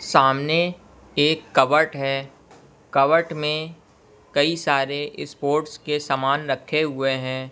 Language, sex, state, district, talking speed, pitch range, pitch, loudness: Hindi, male, Bihar, West Champaran, 110 wpm, 135-155 Hz, 145 Hz, -22 LUFS